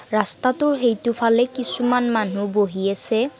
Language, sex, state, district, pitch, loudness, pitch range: Assamese, female, Assam, Kamrup Metropolitan, 235 Hz, -19 LUFS, 210-245 Hz